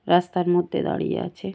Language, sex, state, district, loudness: Bengali, female, West Bengal, Paschim Medinipur, -23 LUFS